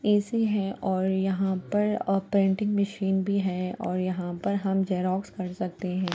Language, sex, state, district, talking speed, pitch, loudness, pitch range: Hindi, female, Bihar, Patna, 165 wpm, 195 Hz, -27 LUFS, 185-200 Hz